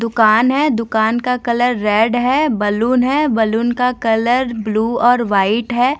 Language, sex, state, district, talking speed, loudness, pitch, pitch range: Hindi, female, Bihar, West Champaran, 160 wpm, -15 LUFS, 235 Hz, 220-250 Hz